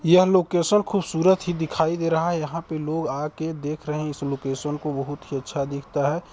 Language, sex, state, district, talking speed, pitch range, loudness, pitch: Hindi, male, Chhattisgarh, Balrampur, 230 wpm, 145-170 Hz, -24 LUFS, 160 Hz